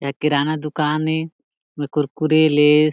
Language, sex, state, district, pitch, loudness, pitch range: Chhattisgarhi, male, Chhattisgarh, Jashpur, 150 Hz, -18 LUFS, 150-155 Hz